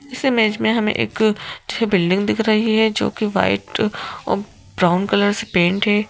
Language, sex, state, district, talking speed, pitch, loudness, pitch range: Hindi, female, Madhya Pradesh, Bhopal, 195 wpm, 210 Hz, -18 LUFS, 180-220 Hz